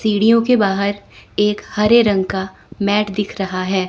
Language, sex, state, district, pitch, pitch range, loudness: Hindi, female, Chandigarh, Chandigarh, 205 Hz, 195-210 Hz, -17 LUFS